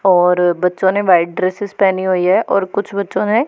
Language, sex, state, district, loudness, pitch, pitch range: Hindi, female, Punjab, Pathankot, -15 LUFS, 190 Hz, 180-200 Hz